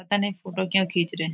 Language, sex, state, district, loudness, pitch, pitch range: Hindi, female, Chhattisgarh, Raigarh, -25 LUFS, 190 Hz, 175-195 Hz